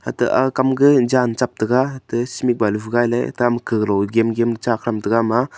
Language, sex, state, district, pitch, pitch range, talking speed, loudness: Wancho, male, Arunachal Pradesh, Longding, 120 Hz, 115-125 Hz, 245 wpm, -18 LUFS